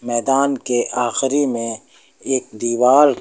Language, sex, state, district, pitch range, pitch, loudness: Hindi, male, Uttar Pradesh, Lucknow, 120-135 Hz, 125 Hz, -18 LUFS